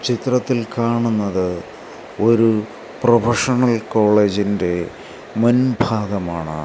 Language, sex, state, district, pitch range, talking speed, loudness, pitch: Malayalam, male, Kerala, Kasaragod, 100-120 Hz, 65 wpm, -18 LUFS, 110 Hz